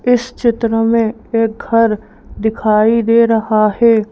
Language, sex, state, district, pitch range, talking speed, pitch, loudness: Hindi, female, Madhya Pradesh, Bhopal, 220-230 Hz, 130 wpm, 230 Hz, -14 LUFS